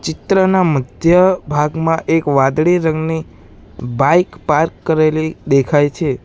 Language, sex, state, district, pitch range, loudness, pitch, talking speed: Gujarati, male, Gujarat, Valsad, 140-165 Hz, -15 LUFS, 160 Hz, 95 wpm